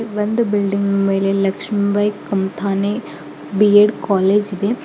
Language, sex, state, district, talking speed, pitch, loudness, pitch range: Kannada, female, Karnataka, Bidar, 100 wpm, 200 Hz, -17 LUFS, 195-210 Hz